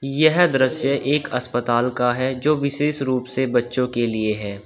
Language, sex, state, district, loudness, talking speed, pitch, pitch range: Hindi, male, Uttar Pradesh, Shamli, -20 LUFS, 180 wpm, 130 Hz, 120-140 Hz